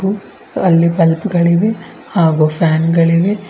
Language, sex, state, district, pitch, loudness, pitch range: Kannada, female, Karnataka, Bidar, 170 Hz, -13 LUFS, 165-200 Hz